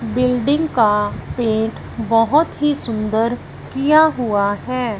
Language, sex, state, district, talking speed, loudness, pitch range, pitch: Hindi, female, Punjab, Fazilka, 110 wpm, -17 LUFS, 220-280 Hz, 235 Hz